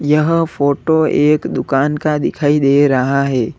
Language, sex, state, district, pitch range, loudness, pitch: Hindi, male, Uttar Pradesh, Lalitpur, 140-155 Hz, -14 LUFS, 145 Hz